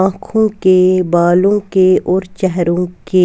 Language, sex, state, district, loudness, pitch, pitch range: Hindi, female, Bihar, West Champaran, -13 LUFS, 185 Hz, 180-195 Hz